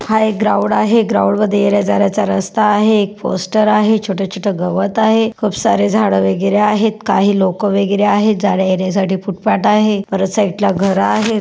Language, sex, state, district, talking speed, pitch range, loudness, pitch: Marathi, female, Maharashtra, Pune, 175 wpm, 195-215 Hz, -14 LUFS, 205 Hz